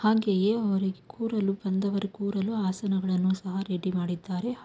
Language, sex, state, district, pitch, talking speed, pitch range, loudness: Kannada, female, Karnataka, Mysore, 195 Hz, 105 wpm, 185-210 Hz, -28 LUFS